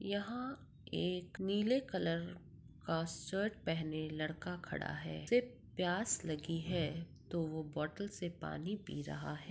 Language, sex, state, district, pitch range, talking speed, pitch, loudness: Hindi, female, Bihar, Madhepura, 155-190 Hz, 140 wpm, 165 Hz, -40 LUFS